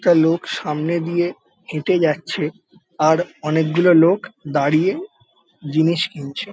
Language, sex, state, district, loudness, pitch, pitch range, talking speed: Bengali, male, West Bengal, Jalpaiguri, -19 LUFS, 165 Hz, 155-175 Hz, 110 wpm